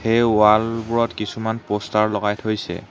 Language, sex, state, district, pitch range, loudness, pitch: Assamese, male, Assam, Hailakandi, 105-115 Hz, -20 LUFS, 110 Hz